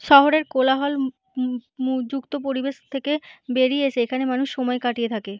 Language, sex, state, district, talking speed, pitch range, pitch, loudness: Bengali, female, West Bengal, Jhargram, 155 wpm, 255-280 Hz, 265 Hz, -22 LUFS